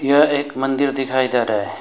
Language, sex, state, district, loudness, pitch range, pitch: Hindi, male, West Bengal, Alipurduar, -18 LUFS, 130-140 Hz, 135 Hz